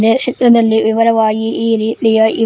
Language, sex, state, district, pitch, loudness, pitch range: Kannada, female, Karnataka, Koppal, 225 Hz, -12 LUFS, 220-230 Hz